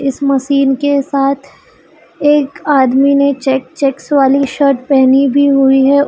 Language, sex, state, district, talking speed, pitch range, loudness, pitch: Hindi, female, Chhattisgarh, Bilaspur, 150 wpm, 270-280 Hz, -12 LUFS, 275 Hz